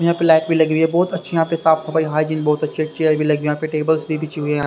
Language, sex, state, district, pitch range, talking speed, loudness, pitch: Hindi, male, Haryana, Rohtak, 155-160 Hz, 360 wpm, -18 LUFS, 155 Hz